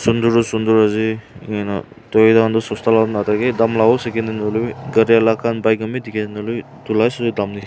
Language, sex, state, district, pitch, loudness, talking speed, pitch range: Nagamese, male, Nagaland, Kohima, 110 Hz, -17 LUFS, 260 wpm, 110-115 Hz